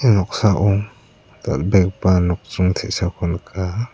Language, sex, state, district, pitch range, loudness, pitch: Garo, male, Meghalaya, South Garo Hills, 90-110 Hz, -19 LUFS, 95 Hz